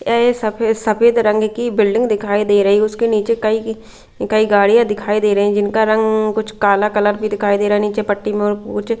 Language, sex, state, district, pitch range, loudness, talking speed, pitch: Hindi, female, Delhi, New Delhi, 205-220 Hz, -15 LUFS, 225 wpm, 215 Hz